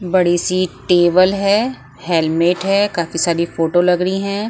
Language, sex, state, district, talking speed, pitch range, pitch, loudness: Hindi, female, Bihar, Katihar, 160 wpm, 170-195 Hz, 180 Hz, -16 LUFS